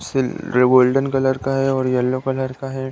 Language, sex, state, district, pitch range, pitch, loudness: Hindi, male, Uttar Pradesh, Deoria, 130-135 Hz, 130 Hz, -18 LUFS